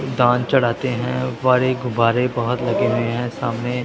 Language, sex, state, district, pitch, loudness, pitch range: Hindi, male, Punjab, Pathankot, 125 Hz, -19 LUFS, 120-125 Hz